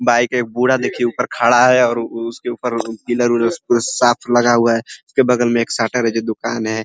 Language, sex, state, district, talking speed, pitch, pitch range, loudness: Hindi, male, Uttar Pradesh, Ghazipur, 245 wpm, 120 Hz, 115-125 Hz, -16 LUFS